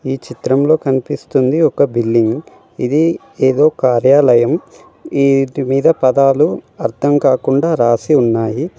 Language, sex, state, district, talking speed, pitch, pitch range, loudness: Telugu, male, Telangana, Mahabubabad, 100 wpm, 135 Hz, 125-145 Hz, -14 LUFS